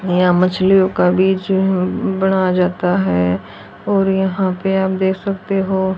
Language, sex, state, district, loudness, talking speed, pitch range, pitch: Hindi, female, Haryana, Jhajjar, -16 LUFS, 140 wpm, 180-190 Hz, 190 Hz